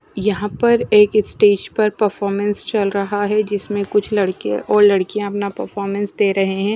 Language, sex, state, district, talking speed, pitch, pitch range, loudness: Hindi, female, Maharashtra, Mumbai Suburban, 170 wpm, 205 Hz, 200-210 Hz, -17 LUFS